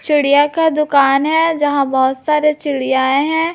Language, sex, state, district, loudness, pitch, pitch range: Hindi, female, Chhattisgarh, Raipur, -14 LUFS, 290 Hz, 275-305 Hz